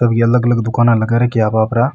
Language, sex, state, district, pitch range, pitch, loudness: Rajasthani, male, Rajasthan, Nagaur, 115-120 Hz, 115 Hz, -14 LUFS